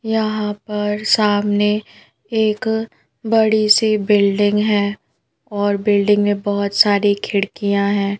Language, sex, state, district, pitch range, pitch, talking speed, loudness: Hindi, female, Madhya Pradesh, Bhopal, 205-215 Hz, 210 Hz, 110 wpm, -17 LUFS